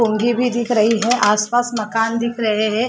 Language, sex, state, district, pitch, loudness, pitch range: Hindi, female, Chhattisgarh, Rajnandgaon, 230 Hz, -17 LUFS, 215-240 Hz